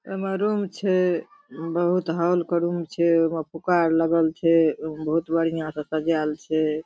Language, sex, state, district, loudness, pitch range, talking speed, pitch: Maithili, female, Bihar, Darbhanga, -23 LUFS, 160-175 Hz, 190 wpm, 165 Hz